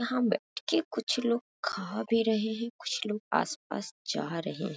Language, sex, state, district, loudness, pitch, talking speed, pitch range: Hindi, female, Bihar, Muzaffarpur, -31 LUFS, 235 Hz, 190 wpm, 220-240 Hz